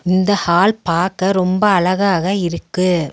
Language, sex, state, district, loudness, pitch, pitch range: Tamil, female, Tamil Nadu, Nilgiris, -16 LUFS, 185 Hz, 175-200 Hz